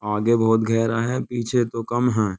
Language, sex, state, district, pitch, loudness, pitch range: Hindi, male, Uttar Pradesh, Jyotiba Phule Nagar, 115 Hz, -21 LUFS, 110-120 Hz